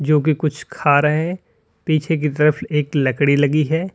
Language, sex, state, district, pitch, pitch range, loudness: Hindi, male, Uttar Pradesh, Lalitpur, 150 Hz, 145-155 Hz, -18 LUFS